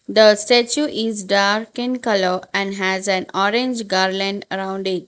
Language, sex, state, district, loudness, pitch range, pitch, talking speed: English, female, Gujarat, Valsad, -18 LUFS, 190-225 Hz, 200 Hz, 155 wpm